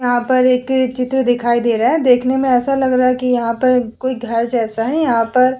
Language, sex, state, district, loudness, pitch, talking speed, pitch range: Hindi, female, Uttar Pradesh, Hamirpur, -15 LUFS, 250 Hz, 255 wpm, 240-260 Hz